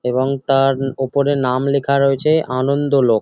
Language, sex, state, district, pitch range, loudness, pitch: Bengali, male, West Bengal, Jhargram, 130-140 Hz, -17 LUFS, 135 Hz